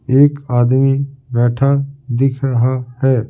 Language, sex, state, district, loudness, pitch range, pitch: Hindi, male, Bihar, Patna, -15 LUFS, 125-135 Hz, 130 Hz